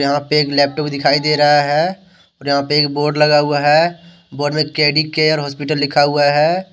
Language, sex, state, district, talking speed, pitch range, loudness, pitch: Hindi, male, Jharkhand, Deoghar, 215 wpm, 145-155 Hz, -15 LUFS, 150 Hz